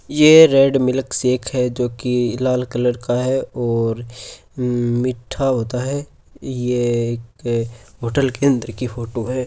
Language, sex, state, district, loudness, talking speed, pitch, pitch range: Hindi, male, Rajasthan, Churu, -18 LUFS, 145 wpm, 125 Hz, 120-130 Hz